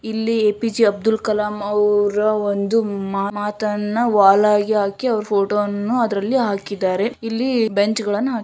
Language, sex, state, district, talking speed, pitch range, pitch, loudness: Kannada, female, Karnataka, Shimoga, 155 wpm, 205-225 Hz, 210 Hz, -19 LUFS